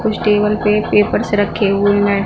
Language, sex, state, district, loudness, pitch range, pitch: Hindi, female, Punjab, Fazilka, -15 LUFS, 205-210 Hz, 210 Hz